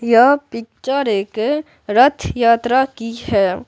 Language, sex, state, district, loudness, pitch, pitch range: Hindi, male, Bihar, Patna, -16 LUFS, 235 Hz, 225-265 Hz